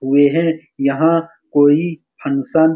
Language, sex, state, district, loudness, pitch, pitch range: Hindi, male, Bihar, Saran, -16 LUFS, 150 Hz, 140-165 Hz